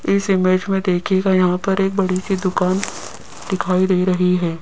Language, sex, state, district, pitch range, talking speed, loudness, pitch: Hindi, female, Rajasthan, Jaipur, 180-195 Hz, 180 wpm, -18 LUFS, 185 Hz